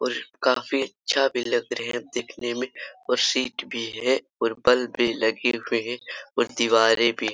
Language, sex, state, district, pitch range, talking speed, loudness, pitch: Hindi, male, Jharkhand, Sahebganj, 115-125 Hz, 190 wpm, -24 LUFS, 120 Hz